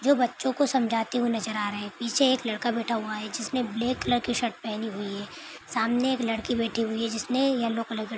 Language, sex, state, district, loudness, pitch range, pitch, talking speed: Hindi, female, Chhattisgarh, Bilaspur, -27 LUFS, 220-245 Hz, 230 Hz, 235 wpm